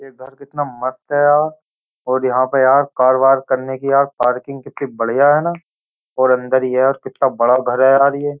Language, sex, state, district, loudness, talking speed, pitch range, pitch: Hindi, male, Uttar Pradesh, Jyotiba Phule Nagar, -15 LUFS, 215 wpm, 130-140 Hz, 135 Hz